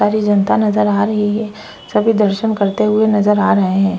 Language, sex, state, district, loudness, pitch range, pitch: Hindi, female, Chhattisgarh, Korba, -14 LUFS, 205-215 Hz, 210 Hz